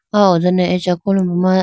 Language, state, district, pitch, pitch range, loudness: Idu Mishmi, Arunachal Pradesh, Lower Dibang Valley, 185 Hz, 180-190 Hz, -15 LUFS